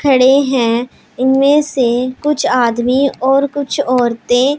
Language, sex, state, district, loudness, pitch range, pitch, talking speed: Hindi, female, Punjab, Pathankot, -13 LUFS, 245-280 Hz, 260 Hz, 115 wpm